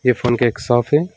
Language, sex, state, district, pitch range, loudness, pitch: Hindi, male, West Bengal, Alipurduar, 120-130 Hz, -17 LUFS, 120 Hz